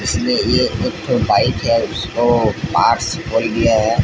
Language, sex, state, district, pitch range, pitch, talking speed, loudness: Hindi, male, Odisha, Sambalpur, 110-120 Hz, 115 Hz, 165 wpm, -16 LUFS